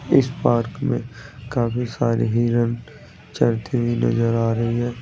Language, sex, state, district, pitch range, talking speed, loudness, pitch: Hindi, male, Uttar Pradesh, Saharanpur, 115-120 Hz, 145 wpm, -21 LUFS, 120 Hz